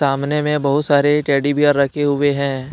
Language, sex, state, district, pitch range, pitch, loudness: Hindi, male, Jharkhand, Deoghar, 140-145 Hz, 145 Hz, -16 LUFS